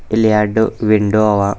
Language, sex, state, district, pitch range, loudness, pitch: Kannada, male, Karnataka, Bidar, 105-110 Hz, -14 LUFS, 105 Hz